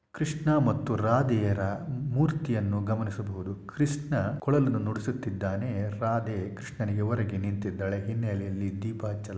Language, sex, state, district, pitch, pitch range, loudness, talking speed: Kannada, male, Karnataka, Shimoga, 110 Hz, 100-130 Hz, -29 LUFS, 110 wpm